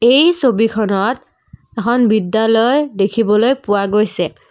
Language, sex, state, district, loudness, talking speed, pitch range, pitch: Assamese, female, Assam, Kamrup Metropolitan, -14 LUFS, 95 wpm, 210-250 Hz, 225 Hz